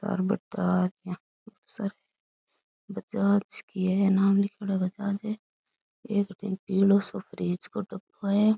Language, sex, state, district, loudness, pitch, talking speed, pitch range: Rajasthani, female, Rajasthan, Churu, -28 LUFS, 200 Hz, 120 wpm, 190-205 Hz